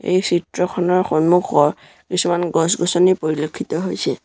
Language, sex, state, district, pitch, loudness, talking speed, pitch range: Assamese, male, Assam, Sonitpur, 175 Hz, -18 LUFS, 115 wpm, 155-180 Hz